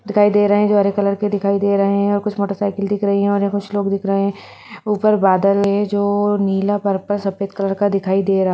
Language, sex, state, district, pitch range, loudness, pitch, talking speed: Hindi, female, Maharashtra, Chandrapur, 195-205 Hz, -17 LUFS, 200 Hz, 265 wpm